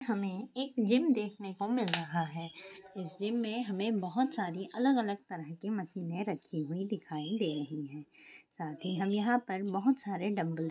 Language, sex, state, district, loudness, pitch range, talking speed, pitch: Hindi, female, Maharashtra, Aurangabad, -34 LUFS, 170-220 Hz, 190 wpm, 195 Hz